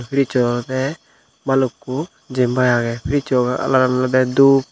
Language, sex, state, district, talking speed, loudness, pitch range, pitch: Chakma, male, Tripura, Dhalai, 115 wpm, -18 LUFS, 125-135 Hz, 130 Hz